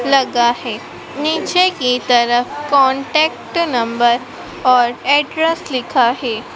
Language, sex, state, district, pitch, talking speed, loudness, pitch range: Hindi, female, Madhya Pradesh, Dhar, 255 Hz, 100 wpm, -15 LUFS, 240-295 Hz